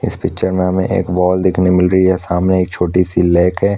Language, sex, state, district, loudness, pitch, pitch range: Hindi, male, Chhattisgarh, Korba, -14 LUFS, 90 Hz, 90-95 Hz